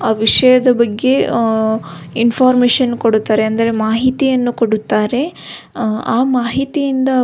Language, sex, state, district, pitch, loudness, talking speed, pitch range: Kannada, female, Karnataka, Belgaum, 235 Hz, -14 LUFS, 90 wpm, 220-255 Hz